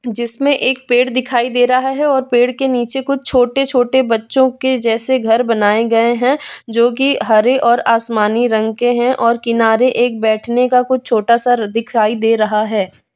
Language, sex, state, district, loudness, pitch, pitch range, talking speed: Hindi, female, Bihar, West Champaran, -14 LUFS, 245 Hz, 225-255 Hz, 190 wpm